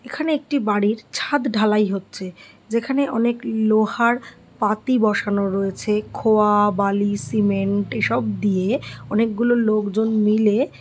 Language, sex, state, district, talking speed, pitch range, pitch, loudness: Bengali, female, West Bengal, North 24 Parganas, 115 wpm, 205-235 Hz, 215 Hz, -20 LUFS